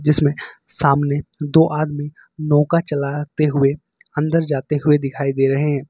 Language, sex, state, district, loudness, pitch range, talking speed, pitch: Hindi, male, Uttar Pradesh, Lucknow, -18 LUFS, 140-150 Hz, 140 wpm, 145 Hz